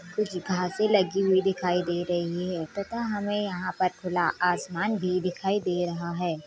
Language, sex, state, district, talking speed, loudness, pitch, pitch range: Hindi, female, Chhattisgarh, Raigarh, 165 wpm, -27 LUFS, 180 Hz, 175-200 Hz